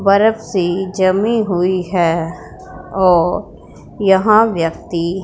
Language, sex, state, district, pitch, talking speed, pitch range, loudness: Hindi, female, Punjab, Pathankot, 185 Hz, 90 wpm, 175-200 Hz, -15 LUFS